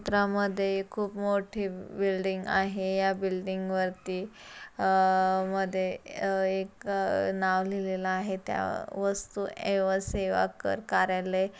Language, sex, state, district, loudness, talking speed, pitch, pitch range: Marathi, female, Maharashtra, Solapur, -29 LUFS, 105 wpm, 190 Hz, 190-195 Hz